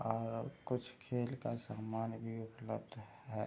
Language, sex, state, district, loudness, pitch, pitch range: Hindi, male, Bihar, Sitamarhi, -42 LUFS, 115 Hz, 110-125 Hz